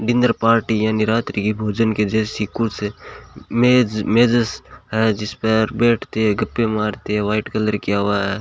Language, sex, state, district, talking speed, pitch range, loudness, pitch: Hindi, male, Rajasthan, Bikaner, 155 wpm, 105-115 Hz, -19 LUFS, 110 Hz